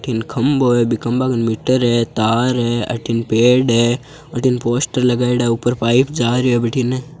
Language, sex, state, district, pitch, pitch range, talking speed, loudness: Marwari, male, Rajasthan, Churu, 120 Hz, 115-130 Hz, 190 wpm, -16 LUFS